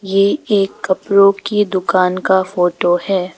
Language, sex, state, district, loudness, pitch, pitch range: Hindi, female, Arunachal Pradesh, Papum Pare, -15 LUFS, 190 Hz, 185-200 Hz